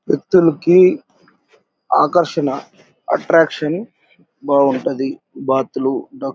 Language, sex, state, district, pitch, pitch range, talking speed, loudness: Telugu, male, Andhra Pradesh, Anantapur, 145 Hz, 135-170 Hz, 55 wpm, -16 LUFS